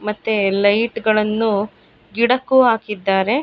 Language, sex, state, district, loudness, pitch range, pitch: Kannada, male, Karnataka, Mysore, -17 LUFS, 205-230 Hz, 215 Hz